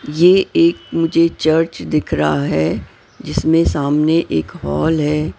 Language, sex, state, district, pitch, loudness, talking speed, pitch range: Hindi, female, Maharashtra, Mumbai Suburban, 160 Hz, -16 LUFS, 135 wpm, 150-165 Hz